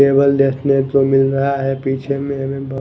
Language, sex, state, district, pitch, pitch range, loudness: Hindi, male, Chhattisgarh, Raipur, 135 Hz, 135-140 Hz, -16 LUFS